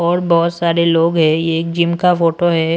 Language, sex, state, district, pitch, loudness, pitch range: Hindi, male, Punjab, Pathankot, 170 Hz, -14 LUFS, 165-170 Hz